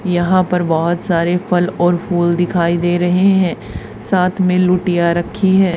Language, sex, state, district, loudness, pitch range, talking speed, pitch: Hindi, female, Haryana, Charkhi Dadri, -15 LUFS, 170-180 Hz, 165 wpm, 175 Hz